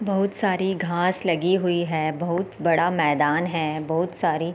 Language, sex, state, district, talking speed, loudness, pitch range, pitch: Hindi, female, Chhattisgarh, Raigarh, 160 wpm, -23 LUFS, 160-185 Hz, 175 Hz